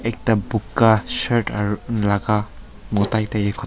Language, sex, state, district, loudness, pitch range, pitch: Nagamese, male, Nagaland, Kohima, -20 LUFS, 100-115 Hz, 105 Hz